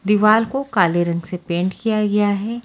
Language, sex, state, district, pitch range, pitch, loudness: Hindi, female, Haryana, Charkhi Dadri, 175-220 Hz, 205 Hz, -18 LUFS